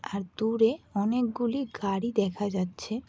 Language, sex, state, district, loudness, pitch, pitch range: Bengali, female, West Bengal, Kolkata, -29 LUFS, 225 Hz, 200-240 Hz